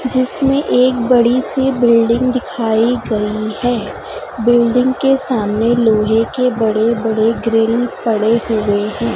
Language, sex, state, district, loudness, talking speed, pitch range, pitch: Hindi, female, Chhattisgarh, Raipur, -14 LUFS, 125 wpm, 220-250 Hz, 235 Hz